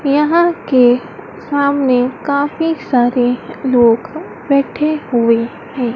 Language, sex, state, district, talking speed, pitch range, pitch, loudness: Hindi, female, Madhya Pradesh, Dhar, 90 wpm, 245-290 Hz, 260 Hz, -14 LUFS